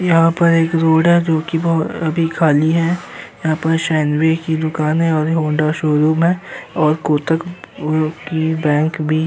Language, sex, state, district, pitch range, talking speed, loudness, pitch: Hindi, male, Uttar Pradesh, Jyotiba Phule Nagar, 155-165 Hz, 155 wpm, -16 LUFS, 160 Hz